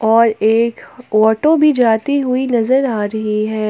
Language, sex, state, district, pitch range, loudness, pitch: Hindi, female, Jharkhand, Palamu, 220-260 Hz, -14 LUFS, 230 Hz